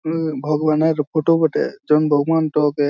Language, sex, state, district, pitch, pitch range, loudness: Bengali, male, West Bengal, Jhargram, 155 Hz, 150-160 Hz, -18 LUFS